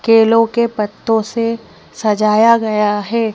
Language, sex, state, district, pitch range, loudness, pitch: Hindi, female, Madhya Pradesh, Bhopal, 215-230 Hz, -14 LUFS, 225 Hz